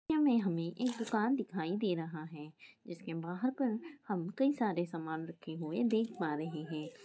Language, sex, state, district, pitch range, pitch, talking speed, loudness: Hindi, female, Goa, North and South Goa, 160-235 Hz, 180 Hz, 170 wpm, -36 LUFS